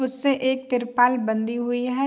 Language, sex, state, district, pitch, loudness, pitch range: Hindi, female, Bihar, Saharsa, 250 Hz, -23 LUFS, 240-260 Hz